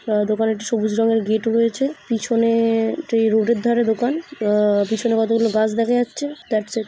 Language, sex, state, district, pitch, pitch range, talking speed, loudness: Bengali, female, West Bengal, Purulia, 225 Hz, 220-235 Hz, 190 wpm, -19 LUFS